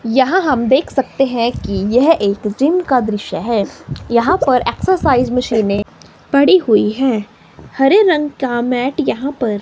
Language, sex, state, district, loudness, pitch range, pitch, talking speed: Hindi, male, Himachal Pradesh, Shimla, -15 LUFS, 220-280 Hz, 250 Hz, 155 wpm